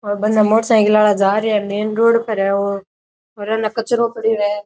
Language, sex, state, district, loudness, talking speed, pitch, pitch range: Rajasthani, male, Rajasthan, Nagaur, -16 LUFS, 220 wpm, 215 Hz, 205-220 Hz